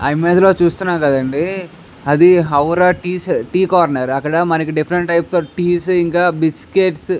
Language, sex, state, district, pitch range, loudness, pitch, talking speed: Telugu, male, Andhra Pradesh, Krishna, 155-180 Hz, -15 LUFS, 175 Hz, 135 wpm